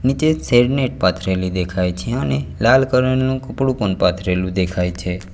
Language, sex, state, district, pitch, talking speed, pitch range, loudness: Gujarati, male, Gujarat, Valsad, 95 Hz, 170 wpm, 90-130 Hz, -18 LUFS